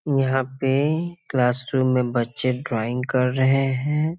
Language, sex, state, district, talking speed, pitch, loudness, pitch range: Hindi, male, Bihar, Muzaffarpur, 130 wpm, 130 Hz, -22 LUFS, 125-135 Hz